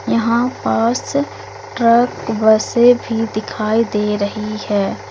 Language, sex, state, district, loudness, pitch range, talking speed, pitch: Hindi, female, Uttar Pradesh, Lalitpur, -16 LUFS, 215-235 Hz, 105 wpm, 225 Hz